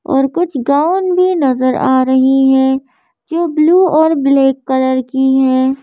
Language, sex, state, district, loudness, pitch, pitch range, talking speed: Hindi, female, Madhya Pradesh, Bhopal, -12 LUFS, 270 Hz, 265-330 Hz, 155 wpm